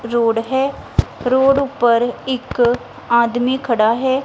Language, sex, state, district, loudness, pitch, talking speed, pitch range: Punjabi, female, Punjab, Kapurthala, -17 LUFS, 245 Hz, 115 wpm, 235-265 Hz